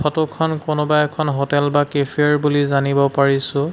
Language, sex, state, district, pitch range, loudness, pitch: Assamese, male, Assam, Sonitpur, 140-150 Hz, -18 LUFS, 145 Hz